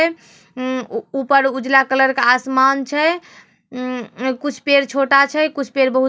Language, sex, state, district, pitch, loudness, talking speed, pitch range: Magahi, female, Bihar, Samastipur, 265 Hz, -17 LUFS, 185 wpm, 255-280 Hz